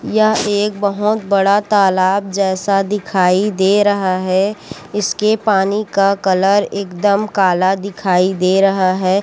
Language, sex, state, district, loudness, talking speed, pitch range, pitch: Chhattisgarhi, female, Chhattisgarh, Korba, -15 LUFS, 130 wpm, 190-205 Hz, 195 Hz